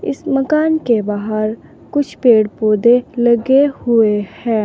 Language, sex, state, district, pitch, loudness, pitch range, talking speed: Hindi, female, Uttar Pradesh, Saharanpur, 235 Hz, -15 LUFS, 215-265 Hz, 130 wpm